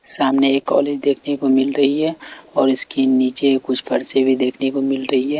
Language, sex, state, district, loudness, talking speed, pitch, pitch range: Hindi, male, Chhattisgarh, Raipur, -17 LUFS, 210 wpm, 135 Hz, 130-140 Hz